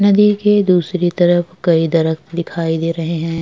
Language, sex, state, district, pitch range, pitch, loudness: Hindi, female, Bihar, Vaishali, 165-180 Hz, 175 Hz, -15 LUFS